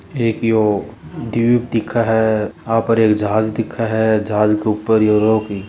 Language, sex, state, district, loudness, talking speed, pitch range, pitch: Hindi, male, Rajasthan, Churu, -16 LUFS, 170 wpm, 105-115 Hz, 110 Hz